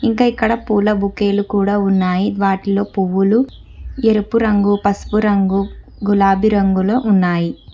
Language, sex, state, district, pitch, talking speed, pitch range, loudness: Telugu, female, Telangana, Hyderabad, 205 Hz, 115 wpm, 195-215 Hz, -16 LUFS